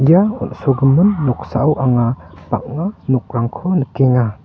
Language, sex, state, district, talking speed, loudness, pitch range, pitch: Garo, male, Meghalaya, North Garo Hills, 95 wpm, -16 LUFS, 120-155 Hz, 135 Hz